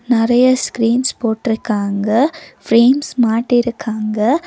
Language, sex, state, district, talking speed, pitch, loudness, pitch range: Tamil, female, Tamil Nadu, Nilgiris, 65 wpm, 235 Hz, -15 LUFS, 220-255 Hz